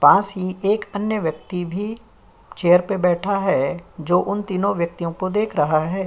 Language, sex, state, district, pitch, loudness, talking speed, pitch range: Hindi, female, Uttar Pradesh, Jyotiba Phule Nagar, 185 Hz, -21 LUFS, 170 wpm, 170-200 Hz